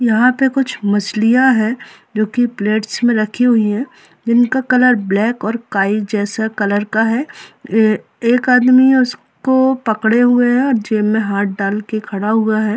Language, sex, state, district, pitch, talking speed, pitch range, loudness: Hindi, female, Bihar, Purnia, 220 Hz, 180 wpm, 215-250 Hz, -15 LUFS